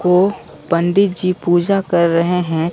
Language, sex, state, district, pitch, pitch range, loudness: Hindi, male, Bihar, Katihar, 180 Hz, 170-185 Hz, -15 LUFS